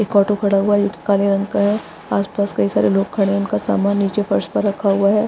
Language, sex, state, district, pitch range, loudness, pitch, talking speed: Hindi, female, Chhattisgarh, Bastar, 200-205 Hz, -18 LUFS, 200 Hz, 270 wpm